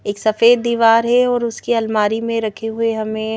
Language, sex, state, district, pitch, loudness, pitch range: Hindi, female, Madhya Pradesh, Bhopal, 225 Hz, -16 LUFS, 220-235 Hz